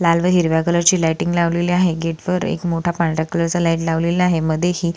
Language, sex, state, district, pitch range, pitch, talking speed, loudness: Marathi, female, Maharashtra, Solapur, 165-175 Hz, 170 Hz, 240 wpm, -18 LUFS